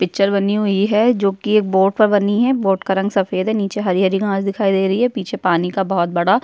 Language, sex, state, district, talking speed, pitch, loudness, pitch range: Hindi, female, Uttarakhand, Tehri Garhwal, 270 wpm, 195 Hz, -17 LUFS, 190-210 Hz